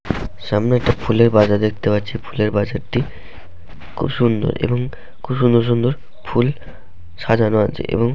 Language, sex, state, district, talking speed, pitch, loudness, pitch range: Bengali, male, West Bengal, Malda, 140 wpm, 110 Hz, -18 LUFS, 100-120 Hz